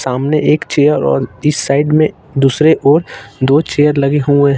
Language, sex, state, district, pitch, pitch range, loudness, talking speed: Hindi, male, Jharkhand, Ranchi, 145 Hz, 135-150 Hz, -12 LUFS, 170 wpm